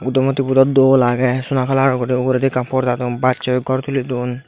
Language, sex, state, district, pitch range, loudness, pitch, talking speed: Chakma, male, Tripura, Unakoti, 125-135 Hz, -16 LUFS, 130 Hz, 240 wpm